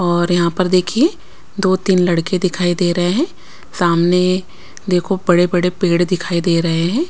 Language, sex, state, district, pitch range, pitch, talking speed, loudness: Hindi, female, Bihar, West Champaran, 175-185 Hz, 180 Hz, 150 wpm, -16 LUFS